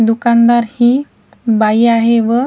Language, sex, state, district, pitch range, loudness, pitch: Marathi, female, Maharashtra, Washim, 225-240 Hz, -12 LUFS, 235 Hz